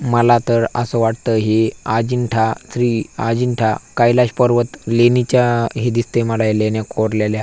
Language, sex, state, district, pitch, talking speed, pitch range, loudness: Marathi, male, Maharashtra, Aurangabad, 115 Hz, 130 wpm, 110-120 Hz, -16 LUFS